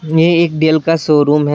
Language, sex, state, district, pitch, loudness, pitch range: Hindi, male, Tripura, West Tripura, 160 Hz, -12 LUFS, 150-165 Hz